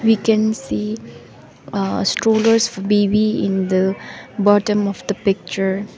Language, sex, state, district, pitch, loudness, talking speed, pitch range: English, female, Sikkim, Gangtok, 200 Hz, -18 LUFS, 120 wpm, 185-215 Hz